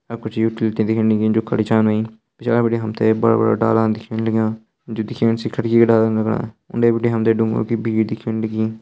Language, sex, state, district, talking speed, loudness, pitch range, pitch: Hindi, male, Uttarakhand, Uttarkashi, 230 wpm, -18 LUFS, 110-115 Hz, 110 Hz